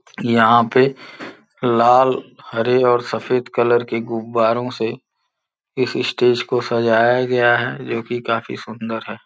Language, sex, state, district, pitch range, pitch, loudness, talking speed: Hindi, male, Uttar Pradesh, Gorakhpur, 115-125 Hz, 120 Hz, -18 LUFS, 135 wpm